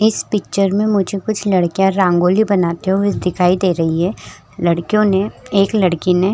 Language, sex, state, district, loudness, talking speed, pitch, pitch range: Hindi, female, Chhattisgarh, Rajnandgaon, -16 LUFS, 180 wpm, 195 Hz, 180-205 Hz